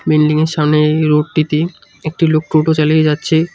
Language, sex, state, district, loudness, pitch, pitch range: Bengali, male, West Bengal, Cooch Behar, -14 LUFS, 155 Hz, 150-160 Hz